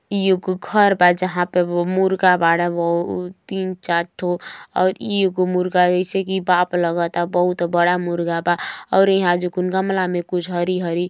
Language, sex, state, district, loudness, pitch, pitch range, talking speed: Bhojpuri, female, Uttar Pradesh, Gorakhpur, -19 LUFS, 180 Hz, 175-185 Hz, 175 wpm